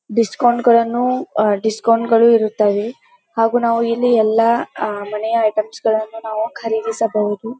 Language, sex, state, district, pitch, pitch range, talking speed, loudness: Kannada, female, Karnataka, Dharwad, 225 Hz, 215-235 Hz, 110 wpm, -17 LUFS